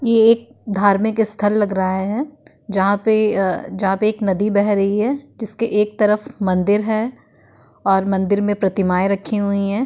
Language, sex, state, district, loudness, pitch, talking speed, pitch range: Hindi, female, Uttarakhand, Tehri Garhwal, -18 LUFS, 205 Hz, 175 wpm, 195-220 Hz